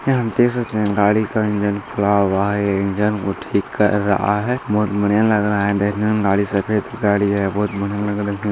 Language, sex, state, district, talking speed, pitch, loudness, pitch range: Hindi, male, Bihar, Lakhisarai, 240 wpm, 105 Hz, -18 LUFS, 100-105 Hz